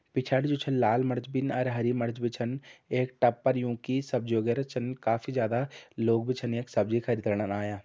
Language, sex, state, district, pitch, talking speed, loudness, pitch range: Garhwali, male, Uttarakhand, Uttarkashi, 125 Hz, 215 wpm, -29 LUFS, 115-130 Hz